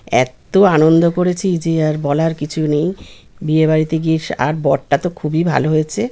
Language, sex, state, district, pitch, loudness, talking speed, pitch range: Bengali, male, West Bengal, Kolkata, 160 Hz, -16 LUFS, 175 wpm, 150-170 Hz